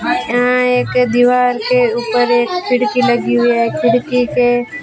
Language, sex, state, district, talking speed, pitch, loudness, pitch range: Hindi, female, Rajasthan, Bikaner, 150 wpm, 245 Hz, -14 LUFS, 240-250 Hz